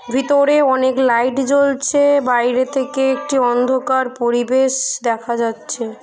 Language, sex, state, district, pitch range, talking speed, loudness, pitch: Bengali, female, West Bengal, Purulia, 245-270 Hz, 110 wpm, -16 LUFS, 260 Hz